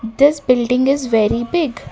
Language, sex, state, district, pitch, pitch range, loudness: English, female, Karnataka, Bangalore, 250 Hz, 235-285 Hz, -16 LUFS